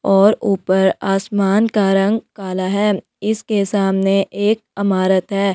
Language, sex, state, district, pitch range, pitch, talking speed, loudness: Hindi, female, Delhi, New Delhi, 195-205 Hz, 195 Hz, 140 wpm, -17 LUFS